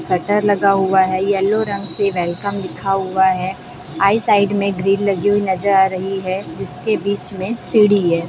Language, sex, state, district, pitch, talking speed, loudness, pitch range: Hindi, female, Chhattisgarh, Raipur, 195 Hz, 190 wpm, -17 LUFS, 185-200 Hz